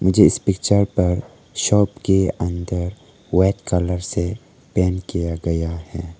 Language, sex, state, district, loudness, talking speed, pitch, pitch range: Hindi, male, Arunachal Pradesh, Lower Dibang Valley, -20 LUFS, 125 wpm, 90 Hz, 85-95 Hz